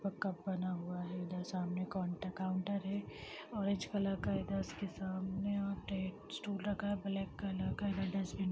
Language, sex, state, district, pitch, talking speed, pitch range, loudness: Hindi, female, Chhattisgarh, Sarguja, 195 Hz, 190 wpm, 185-200 Hz, -40 LUFS